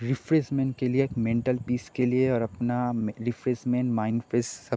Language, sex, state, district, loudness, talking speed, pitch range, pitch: Hindi, male, Bihar, Kishanganj, -27 LUFS, 190 wpm, 120-130 Hz, 125 Hz